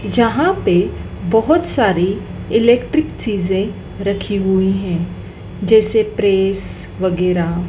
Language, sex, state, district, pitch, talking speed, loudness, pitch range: Hindi, female, Madhya Pradesh, Dhar, 200 Hz, 85 wpm, -16 LUFS, 185-225 Hz